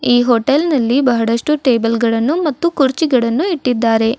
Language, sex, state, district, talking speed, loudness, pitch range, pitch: Kannada, female, Karnataka, Bidar, 130 wpm, -14 LUFS, 230-300 Hz, 250 Hz